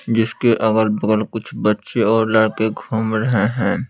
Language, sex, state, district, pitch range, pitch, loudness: Hindi, male, Bihar, Patna, 110-115 Hz, 110 Hz, -18 LUFS